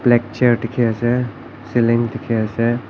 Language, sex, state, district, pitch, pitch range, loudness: Nagamese, male, Nagaland, Kohima, 120 Hz, 115-120 Hz, -18 LUFS